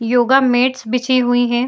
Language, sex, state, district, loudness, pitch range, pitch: Hindi, female, Uttar Pradesh, Etah, -15 LUFS, 245-255 Hz, 245 Hz